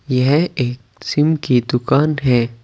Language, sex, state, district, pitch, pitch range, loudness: Hindi, male, Uttar Pradesh, Saharanpur, 130 Hz, 125-150 Hz, -17 LUFS